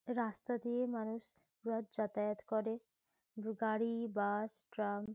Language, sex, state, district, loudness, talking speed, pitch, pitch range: Bengali, female, West Bengal, Kolkata, -40 LUFS, 115 wpm, 220 Hz, 215-230 Hz